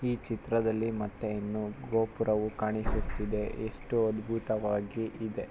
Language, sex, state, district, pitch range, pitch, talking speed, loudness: Kannada, male, Karnataka, Mysore, 105-115 Hz, 110 Hz, 100 wpm, -33 LUFS